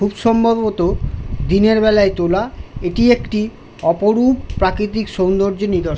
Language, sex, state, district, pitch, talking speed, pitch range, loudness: Bengali, male, West Bengal, Jhargram, 200 Hz, 120 wpm, 175-220 Hz, -16 LUFS